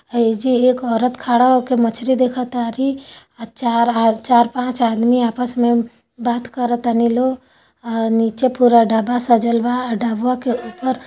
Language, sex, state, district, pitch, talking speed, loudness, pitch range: Hindi, female, Bihar, Gopalganj, 240 Hz, 135 wpm, -17 LUFS, 235-250 Hz